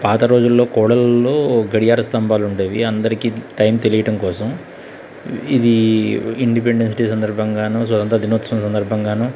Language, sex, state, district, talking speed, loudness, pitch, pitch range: Telugu, male, Andhra Pradesh, Krishna, 115 wpm, -16 LUFS, 115 Hz, 110-115 Hz